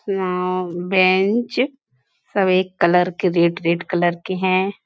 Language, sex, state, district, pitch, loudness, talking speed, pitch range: Hindi, female, Bihar, Bhagalpur, 185 Hz, -19 LUFS, 135 wpm, 175-190 Hz